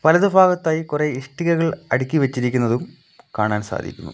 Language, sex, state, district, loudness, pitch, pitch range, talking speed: Malayalam, male, Kerala, Kollam, -20 LUFS, 150 Hz, 125-165 Hz, 115 wpm